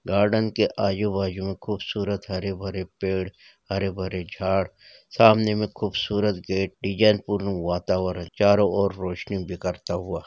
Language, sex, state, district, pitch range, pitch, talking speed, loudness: Hindi, male, Chhattisgarh, Rajnandgaon, 95-105 Hz, 95 Hz, 110 wpm, -24 LUFS